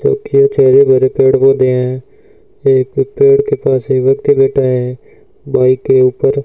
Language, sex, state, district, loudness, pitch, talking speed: Hindi, male, Rajasthan, Bikaner, -11 LUFS, 135 Hz, 165 wpm